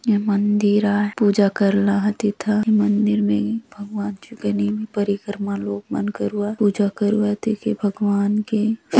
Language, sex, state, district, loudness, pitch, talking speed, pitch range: Halbi, female, Chhattisgarh, Bastar, -20 LUFS, 205 Hz, 145 wpm, 200-210 Hz